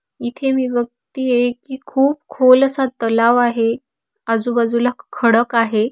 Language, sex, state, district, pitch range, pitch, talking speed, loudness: Marathi, female, Maharashtra, Aurangabad, 235-265 Hz, 245 Hz, 120 wpm, -17 LUFS